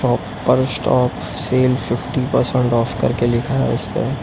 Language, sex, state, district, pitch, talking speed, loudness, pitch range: Hindi, male, Maharashtra, Mumbai Suburban, 125 Hz, 170 wpm, -18 LUFS, 120-130 Hz